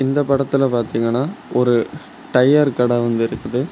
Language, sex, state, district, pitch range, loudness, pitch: Tamil, male, Tamil Nadu, Kanyakumari, 120-140 Hz, -18 LUFS, 125 Hz